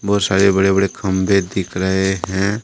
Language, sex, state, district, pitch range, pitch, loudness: Hindi, male, Jharkhand, Deoghar, 95-100 Hz, 95 Hz, -17 LUFS